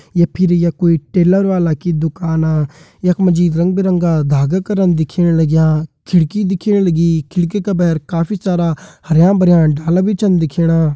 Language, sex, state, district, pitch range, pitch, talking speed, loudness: Kumaoni, male, Uttarakhand, Uttarkashi, 160-185 Hz, 170 Hz, 170 wpm, -14 LUFS